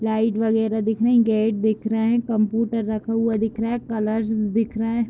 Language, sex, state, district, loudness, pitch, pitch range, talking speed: Hindi, female, Jharkhand, Jamtara, -22 LUFS, 220 Hz, 220-230 Hz, 225 wpm